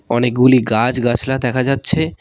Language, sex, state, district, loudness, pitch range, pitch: Bengali, male, West Bengal, Cooch Behar, -15 LUFS, 120-135 Hz, 125 Hz